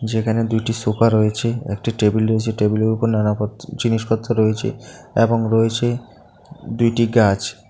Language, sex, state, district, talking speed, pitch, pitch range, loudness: Bengali, male, Tripura, South Tripura, 140 wpm, 110 Hz, 110-115 Hz, -19 LUFS